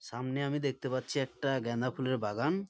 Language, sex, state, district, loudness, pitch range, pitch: Bengali, male, West Bengal, Malda, -34 LUFS, 125-140 Hz, 130 Hz